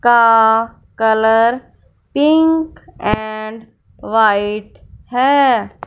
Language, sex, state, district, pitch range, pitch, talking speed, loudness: Hindi, female, Punjab, Fazilka, 220-255 Hz, 225 Hz, 60 wpm, -14 LUFS